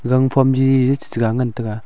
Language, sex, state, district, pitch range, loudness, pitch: Wancho, male, Arunachal Pradesh, Longding, 115-135 Hz, -17 LUFS, 130 Hz